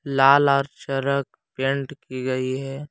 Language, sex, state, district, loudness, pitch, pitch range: Hindi, male, Jharkhand, Palamu, -22 LUFS, 135 Hz, 135-140 Hz